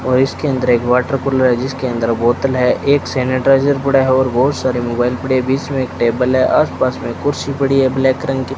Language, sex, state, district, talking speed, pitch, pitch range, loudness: Hindi, male, Rajasthan, Bikaner, 230 wpm, 130 Hz, 125-135 Hz, -15 LUFS